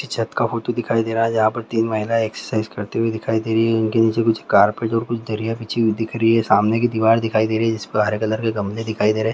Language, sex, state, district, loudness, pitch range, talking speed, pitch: Hindi, male, Chhattisgarh, Bilaspur, -19 LUFS, 110-115 Hz, 310 wpm, 110 Hz